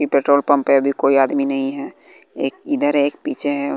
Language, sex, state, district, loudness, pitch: Hindi, male, Bihar, West Champaran, -18 LUFS, 145 Hz